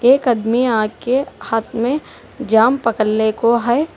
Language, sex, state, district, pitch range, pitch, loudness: Hindi, female, Telangana, Hyderabad, 225-255 Hz, 235 Hz, -17 LUFS